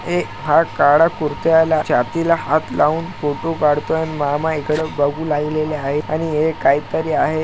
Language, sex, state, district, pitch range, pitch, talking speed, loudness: Marathi, male, Maharashtra, Chandrapur, 150-160 Hz, 155 Hz, 170 wpm, -18 LUFS